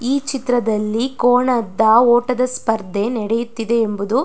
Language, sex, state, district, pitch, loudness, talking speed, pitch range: Kannada, female, Karnataka, Dakshina Kannada, 235 Hz, -17 LUFS, 115 wpm, 220-250 Hz